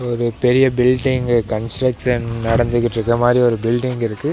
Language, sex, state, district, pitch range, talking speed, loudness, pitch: Tamil, male, Tamil Nadu, Namakkal, 115-125 Hz, 110 wpm, -17 LUFS, 120 Hz